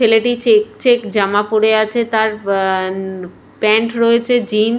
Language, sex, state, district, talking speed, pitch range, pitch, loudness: Bengali, female, West Bengal, Purulia, 150 wpm, 205-230 Hz, 220 Hz, -15 LUFS